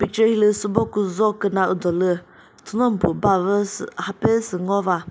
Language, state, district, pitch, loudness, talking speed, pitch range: Chakhesang, Nagaland, Dimapur, 200 Hz, -21 LUFS, 130 wpm, 185-210 Hz